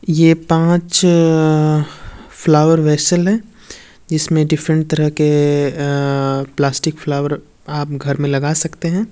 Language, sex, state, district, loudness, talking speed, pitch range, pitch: Hindi, male, Uttar Pradesh, Varanasi, -15 LUFS, 130 wpm, 145-165 Hz, 155 Hz